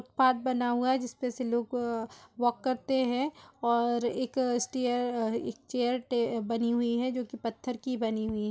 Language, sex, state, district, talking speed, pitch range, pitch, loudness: Hindi, female, Chhattisgarh, Raigarh, 175 wpm, 235-255 Hz, 245 Hz, -30 LUFS